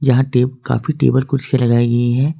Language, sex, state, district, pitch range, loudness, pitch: Hindi, male, Jharkhand, Ranchi, 125-140 Hz, -16 LUFS, 130 Hz